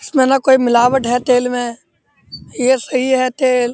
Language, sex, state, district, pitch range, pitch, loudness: Hindi, male, Uttar Pradesh, Muzaffarnagar, 245-260 Hz, 255 Hz, -14 LUFS